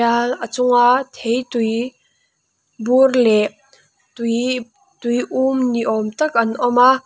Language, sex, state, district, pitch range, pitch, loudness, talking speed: Mizo, female, Mizoram, Aizawl, 230-255 Hz, 245 Hz, -17 LUFS, 120 wpm